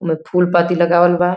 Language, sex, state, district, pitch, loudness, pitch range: Hindi, female, Uttar Pradesh, Gorakhpur, 175 Hz, -14 LUFS, 170-180 Hz